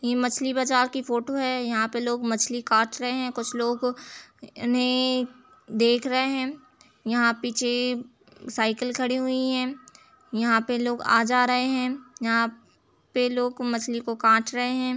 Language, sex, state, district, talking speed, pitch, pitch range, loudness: Hindi, female, Uttar Pradesh, Jalaun, 165 wpm, 245 Hz, 235-255 Hz, -25 LUFS